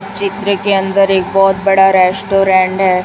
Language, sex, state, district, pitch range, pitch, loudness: Hindi, female, Chhattisgarh, Raipur, 190-195 Hz, 195 Hz, -12 LUFS